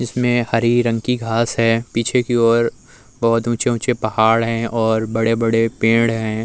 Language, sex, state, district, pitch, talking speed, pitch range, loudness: Hindi, male, Uttar Pradesh, Muzaffarnagar, 115 Hz, 160 wpm, 115-120 Hz, -17 LUFS